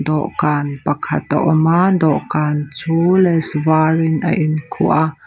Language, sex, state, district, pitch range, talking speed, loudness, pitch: Mizo, female, Mizoram, Aizawl, 150-165 Hz, 150 wpm, -16 LUFS, 155 Hz